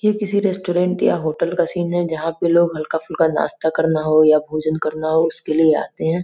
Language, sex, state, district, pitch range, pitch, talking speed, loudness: Hindi, female, Uttar Pradesh, Gorakhpur, 155-175 Hz, 160 Hz, 230 wpm, -18 LUFS